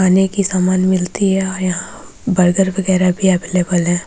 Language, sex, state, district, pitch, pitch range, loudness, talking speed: Hindi, female, Bihar, Vaishali, 185 Hz, 180-190 Hz, -15 LUFS, 175 wpm